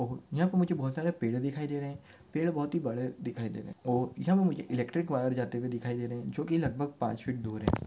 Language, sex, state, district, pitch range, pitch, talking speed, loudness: Hindi, male, Maharashtra, Aurangabad, 120-160 Hz, 130 Hz, 280 wpm, -33 LUFS